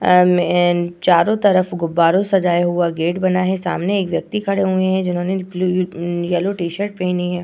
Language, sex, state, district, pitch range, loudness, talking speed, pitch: Hindi, female, Uttar Pradesh, Etah, 175-190 Hz, -17 LUFS, 195 wpm, 180 Hz